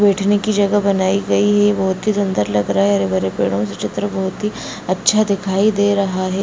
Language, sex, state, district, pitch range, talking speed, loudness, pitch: Hindi, female, Bihar, Bhagalpur, 180-205 Hz, 250 wpm, -17 LUFS, 195 Hz